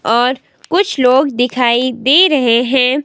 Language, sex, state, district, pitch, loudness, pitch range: Hindi, female, Himachal Pradesh, Shimla, 255 Hz, -12 LUFS, 245-275 Hz